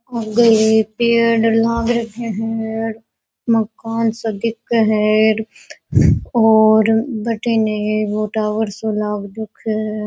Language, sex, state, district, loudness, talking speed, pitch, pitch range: Rajasthani, female, Rajasthan, Nagaur, -17 LUFS, 120 wpm, 220 Hz, 215-230 Hz